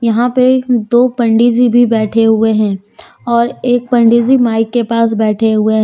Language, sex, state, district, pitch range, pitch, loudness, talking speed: Hindi, female, Jharkhand, Deoghar, 225-245 Hz, 235 Hz, -11 LUFS, 195 wpm